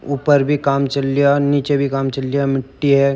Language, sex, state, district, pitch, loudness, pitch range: Hindi, male, Uttar Pradesh, Jyotiba Phule Nagar, 140 Hz, -17 LUFS, 135-140 Hz